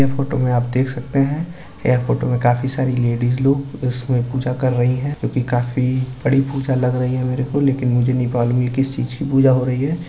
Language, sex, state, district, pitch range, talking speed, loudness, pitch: Hindi, male, Uttar Pradesh, Budaun, 125-135 Hz, 240 wpm, -19 LUFS, 130 Hz